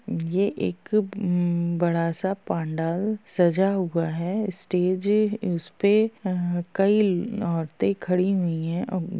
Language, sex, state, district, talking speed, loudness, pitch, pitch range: Hindi, female, Bihar, Gopalganj, 125 wpm, -24 LUFS, 180 Hz, 170-200 Hz